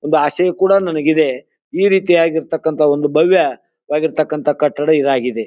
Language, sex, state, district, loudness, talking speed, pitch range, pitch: Kannada, male, Karnataka, Bijapur, -15 LUFS, 145 wpm, 145-165 Hz, 155 Hz